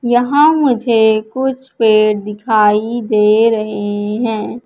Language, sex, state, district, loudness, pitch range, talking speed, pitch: Hindi, female, Madhya Pradesh, Katni, -13 LUFS, 215-245 Hz, 105 wpm, 220 Hz